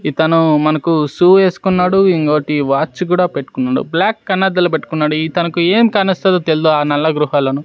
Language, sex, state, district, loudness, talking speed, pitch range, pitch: Telugu, male, Andhra Pradesh, Sri Satya Sai, -14 LUFS, 150 wpm, 150-190 Hz, 165 Hz